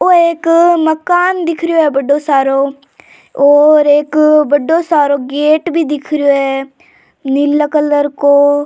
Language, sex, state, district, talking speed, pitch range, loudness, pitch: Rajasthani, female, Rajasthan, Churu, 140 wpm, 285-330 Hz, -11 LUFS, 295 Hz